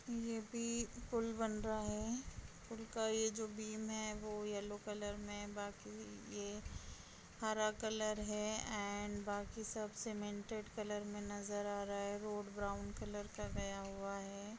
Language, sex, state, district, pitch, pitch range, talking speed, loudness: Hindi, female, Maharashtra, Chandrapur, 210 Hz, 205-220 Hz, 155 wpm, -44 LUFS